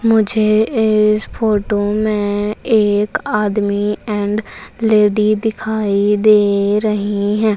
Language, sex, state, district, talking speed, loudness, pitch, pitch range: Hindi, female, Madhya Pradesh, Umaria, 95 wpm, -15 LUFS, 210 Hz, 205-220 Hz